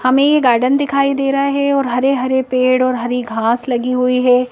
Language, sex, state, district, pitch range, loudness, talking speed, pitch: Hindi, female, Madhya Pradesh, Bhopal, 250-275 Hz, -15 LUFS, 210 wpm, 255 Hz